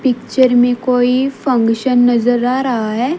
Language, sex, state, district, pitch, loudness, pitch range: Hindi, female, Haryana, Jhajjar, 245 Hz, -14 LUFS, 240-260 Hz